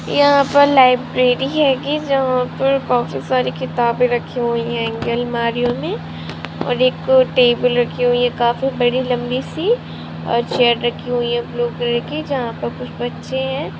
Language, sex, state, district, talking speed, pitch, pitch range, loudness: Hindi, female, Bihar, Purnia, 160 wpm, 245 Hz, 235-265 Hz, -17 LUFS